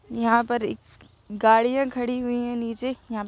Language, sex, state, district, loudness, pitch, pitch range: Hindi, female, Jharkhand, Sahebganj, -24 LUFS, 235 Hz, 210-245 Hz